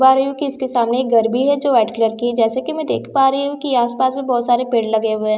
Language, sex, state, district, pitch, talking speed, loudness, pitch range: Hindi, female, Bihar, Katihar, 250 Hz, 345 wpm, -17 LUFS, 230-270 Hz